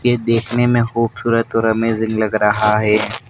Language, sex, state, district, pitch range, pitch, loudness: Hindi, male, Madhya Pradesh, Dhar, 110-115 Hz, 115 Hz, -16 LUFS